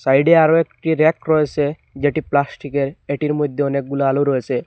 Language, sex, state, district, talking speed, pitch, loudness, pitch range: Bengali, male, Assam, Hailakandi, 155 wpm, 145 Hz, -18 LUFS, 140-155 Hz